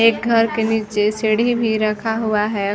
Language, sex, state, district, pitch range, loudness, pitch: Hindi, female, Chhattisgarh, Sarguja, 210-230 Hz, -18 LUFS, 220 Hz